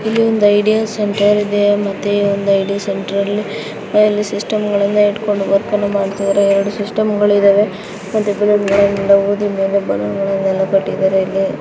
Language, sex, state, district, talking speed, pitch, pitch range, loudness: Kannada, female, Karnataka, Dakshina Kannada, 95 wpm, 200 Hz, 200-210 Hz, -15 LUFS